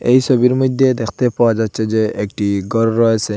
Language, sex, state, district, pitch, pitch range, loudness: Bengali, male, Assam, Hailakandi, 115 Hz, 110-125 Hz, -16 LUFS